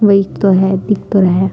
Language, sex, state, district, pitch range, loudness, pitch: Hindi, female, Chhattisgarh, Sukma, 190-200 Hz, -13 LUFS, 190 Hz